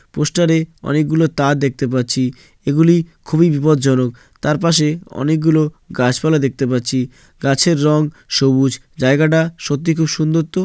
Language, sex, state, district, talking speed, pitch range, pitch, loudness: Bengali, male, West Bengal, Jalpaiguri, 125 wpm, 135-160 Hz, 150 Hz, -16 LUFS